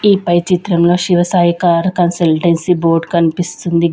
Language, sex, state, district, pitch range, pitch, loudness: Telugu, female, Andhra Pradesh, Sri Satya Sai, 170-180 Hz, 175 Hz, -13 LUFS